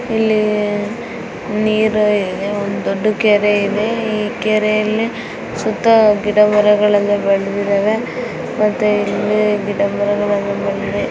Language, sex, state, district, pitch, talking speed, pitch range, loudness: Kannada, female, Karnataka, Bijapur, 210 Hz, 75 wpm, 205-215 Hz, -16 LUFS